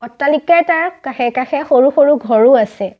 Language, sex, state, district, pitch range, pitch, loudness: Assamese, female, Assam, Sonitpur, 240-300 Hz, 275 Hz, -13 LUFS